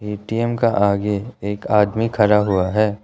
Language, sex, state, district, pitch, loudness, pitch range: Hindi, male, Arunachal Pradesh, Lower Dibang Valley, 105 Hz, -19 LUFS, 100-115 Hz